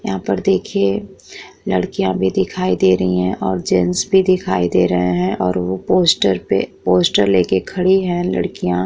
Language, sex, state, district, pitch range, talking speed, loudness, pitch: Hindi, female, Uttar Pradesh, Muzaffarnagar, 90-100 Hz, 170 wpm, -16 LUFS, 95 Hz